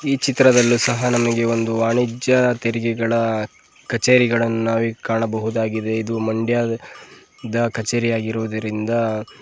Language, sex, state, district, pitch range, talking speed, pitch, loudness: Kannada, male, Karnataka, Mysore, 115-120 Hz, 95 wpm, 115 Hz, -19 LUFS